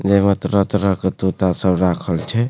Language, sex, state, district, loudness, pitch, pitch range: Maithili, male, Bihar, Supaul, -18 LUFS, 95 Hz, 95-100 Hz